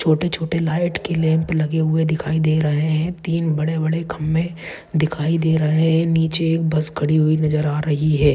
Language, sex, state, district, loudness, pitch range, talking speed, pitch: Hindi, male, Maharashtra, Dhule, -19 LUFS, 155-165 Hz, 185 wpm, 160 Hz